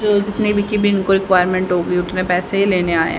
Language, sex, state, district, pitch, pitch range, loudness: Hindi, female, Haryana, Rohtak, 190 Hz, 180-205 Hz, -16 LUFS